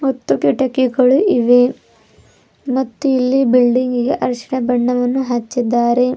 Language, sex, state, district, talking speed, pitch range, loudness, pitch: Kannada, female, Karnataka, Bidar, 85 wpm, 245-260 Hz, -15 LUFS, 250 Hz